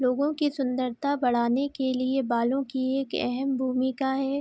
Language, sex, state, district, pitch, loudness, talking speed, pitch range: Hindi, female, Bihar, Araria, 265 Hz, -27 LUFS, 165 wpm, 255-275 Hz